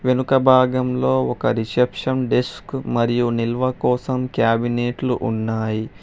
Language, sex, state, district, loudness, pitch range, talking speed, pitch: Telugu, male, Telangana, Hyderabad, -20 LUFS, 115-130 Hz, 100 wpm, 125 Hz